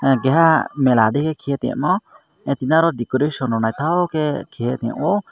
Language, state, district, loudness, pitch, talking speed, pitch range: Kokborok, Tripura, Dhalai, -19 LUFS, 140 Hz, 135 wpm, 125-160 Hz